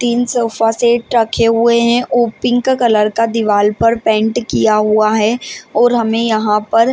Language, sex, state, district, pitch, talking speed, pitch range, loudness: Hindi, female, Maharashtra, Chandrapur, 230 Hz, 175 wpm, 215-240 Hz, -13 LUFS